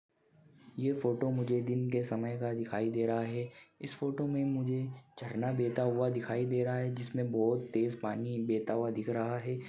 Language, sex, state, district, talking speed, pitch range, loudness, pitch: Hindi, male, Maharashtra, Pune, 190 wpm, 115-130 Hz, -34 LUFS, 120 Hz